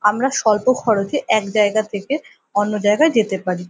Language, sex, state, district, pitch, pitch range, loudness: Bengali, female, West Bengal, North 24 Parganas, 210 Hz, 205-230 Hz, -18 LUFS